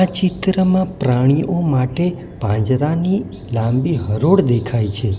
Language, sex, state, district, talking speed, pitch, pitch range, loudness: Gujarati, male, Gujarat, Valsad, 90 wpm, 140 Hz, 115-180 Hz, -17 LUFS